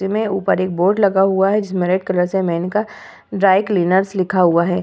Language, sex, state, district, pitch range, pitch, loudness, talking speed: Hindi, female, Uttar Pradesh, Varanasi, 185-195 Hz, 190 Hz, -17 LUFS, 225 wpm